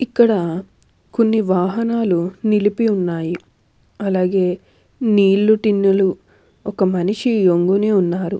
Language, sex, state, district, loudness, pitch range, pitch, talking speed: Telugu, female, Andhra Pradesh, Krishna, -17 LUFS, 180-215 Hz, 195 Hz, 85 wpm